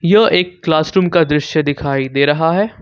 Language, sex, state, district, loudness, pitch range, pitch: Hindi, male, Jharkhand, Ranchi, -14 LUFS, 145-180 Hz, 155 Hz